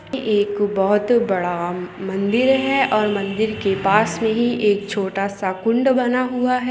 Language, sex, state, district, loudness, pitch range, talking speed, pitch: Hindi, female, Chhattisgarh, Balrampur, -19 LUFS, 195-240 Hz, 160 wpm, 210 Hz